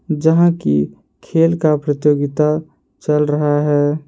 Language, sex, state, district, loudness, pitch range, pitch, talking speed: Hindi, male, Jharkhand, Palamu, -16 LUFS, 145-160 Hz, 150 Hz, 120 wpm